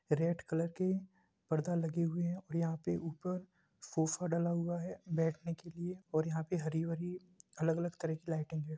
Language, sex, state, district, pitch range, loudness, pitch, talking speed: Hindi, male, Uttar Pradesh, Jalaun, 160-175 Hz, -37 LUFS, 170 Hz, 185 wpm